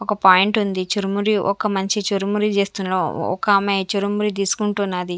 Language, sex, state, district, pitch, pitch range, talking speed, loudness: Telugu, female, Andhra Pradesh, Sri Satya Sai, 200 Hz, 190-210 Hz, 140 wpm, -19 LUFS